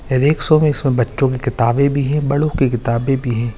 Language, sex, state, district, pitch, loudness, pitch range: Hindi, male, Maharashtra, Nagpur, 135 Hz, -15 LUFS, 120-140 Hz